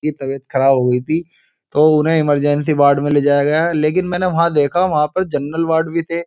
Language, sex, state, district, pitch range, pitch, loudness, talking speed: Hindi, male, Uttar Pradesh, Jyotiba Phule Nagar, 145-165 Hz, 155 Hz, -16 LUFS, 230 wpm